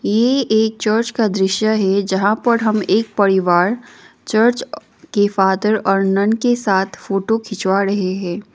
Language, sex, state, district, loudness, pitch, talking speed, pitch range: Hindi, female, Sikkim, Gangtok, -17 LUFS, 205 Hz, 155 wpm, 195-220 Hz